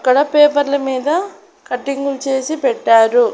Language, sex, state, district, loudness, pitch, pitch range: Telugu, female, Andhra Pradesh, Annamaya, -15 LUFS, 275 Hz, 255-290 Hz